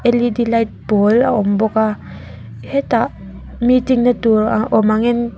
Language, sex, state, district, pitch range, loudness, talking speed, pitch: Mizo, female, Mizoram, Aizawl, 215-240 Hz, -15 LUFS, 180 wpm, 225 Hz